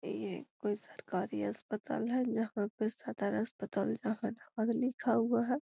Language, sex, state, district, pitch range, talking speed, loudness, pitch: Magahi, female, Bihar, Gaya, 215-240 Hz, 140 wpm, -36 LUFS, 225 Hz